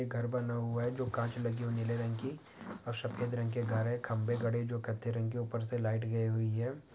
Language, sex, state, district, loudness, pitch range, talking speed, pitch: Hindi, male, Chhattisgarh, Bilaspur, -36 LUFS, 115-120 Hz, 270 wpm, 120 Hz